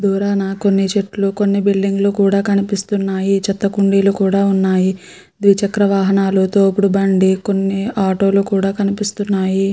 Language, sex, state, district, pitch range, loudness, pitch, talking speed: Telugu, female, Andhra Pradesh, Krishna, 195-200 Hz, -15 LUFS, 195 Hz, 70 wpm